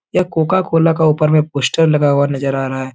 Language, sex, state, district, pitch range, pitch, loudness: Hindi, male, Uttar Pradesh, Etah, 140-165 Hz, 150 Hz, -14 LUFS